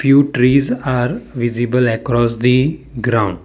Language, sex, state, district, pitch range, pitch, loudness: English, male, Gujarat, Valsad, 120-130 Hz, 125 Hz, -16 LUFS